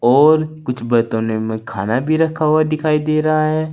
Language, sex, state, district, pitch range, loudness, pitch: Hindi, male, Uttar Pradesh, Saharanpur, 115-155 Hz, -17 LUFS, 155 Hz